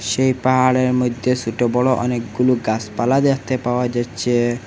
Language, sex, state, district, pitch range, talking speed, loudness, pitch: Bengali, male, Assam, Hailakandi, 120-130 Hz, 130 wpm, -18 LUFS, 125 Hz